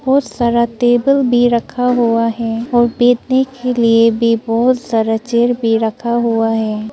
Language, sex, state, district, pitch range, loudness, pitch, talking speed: Hindi, female, Arunachal Pradesh, Papum Pare, 230-245 Hz, -14 LUFS, 235 Hz, 165 wpm